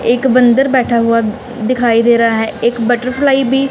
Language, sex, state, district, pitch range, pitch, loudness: Hindi, female, Punjab, Kapurthala, 230-255 Hz, 240 Hz, -12 LUFS